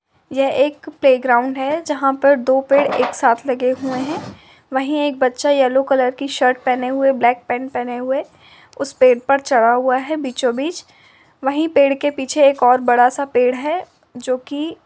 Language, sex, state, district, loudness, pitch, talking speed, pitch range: Hindi, female, Uttar Pradesh, Budaun, -17 LUFS, 270 Hz, 180 wpm, 255-280 Hz